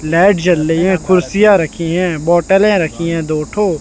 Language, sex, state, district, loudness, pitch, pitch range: Hindi, male, Madhya Pradesh, Katni, -13 LUFS, 175 Hz, 165-190 Hz